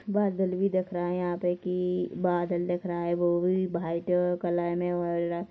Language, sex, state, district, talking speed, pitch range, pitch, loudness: Hindi, female, Chhattisgarh, Korba, 195 wpm, 175-180 Hz, 175 Hz, -29 LUFS